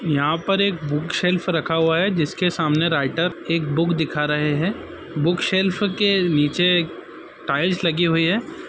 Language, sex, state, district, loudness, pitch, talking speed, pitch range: Hindi, male, Chhattisgarh, Bilaspur, -20 LUFS, 170 Hz, 175 wpm, 155-185 Hz